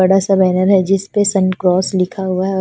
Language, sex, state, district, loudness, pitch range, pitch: Hindi, female, Punjab, Fazilka, -14 LUFS, 185-195 Hz, 190 Hz